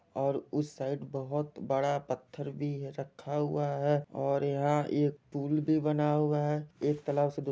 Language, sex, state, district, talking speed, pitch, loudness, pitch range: Hindi, male, Jharkhand, Jamtara, 175 wpm, 145 Hz, -32 LUFS, 140-150 Hz